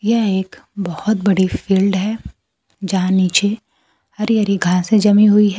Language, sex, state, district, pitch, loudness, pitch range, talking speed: Hindi, female, Bihar, Kaimur, 200 Hz, -16 LUFS, 190-210 Hz, 150 wpm